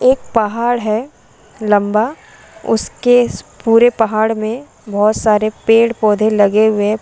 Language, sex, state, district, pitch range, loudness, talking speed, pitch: Hindi, female, Jharkhand, Sahebganj, 215-235 Hz, -14 LUFS, 130 wpm, 220 Hz